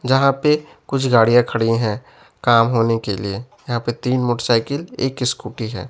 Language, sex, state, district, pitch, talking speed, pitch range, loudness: Hindi, male, Bihar, West Champaran, 120 Hz, 175 wpm, 115-130 Hz, -18 LUFS